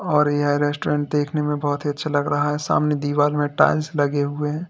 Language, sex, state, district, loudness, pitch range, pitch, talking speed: Hindi, male, Uttar Pradesh, Lalitpur, -21 LUFS, 145-150 Hz, 145 Hz, 230 wpm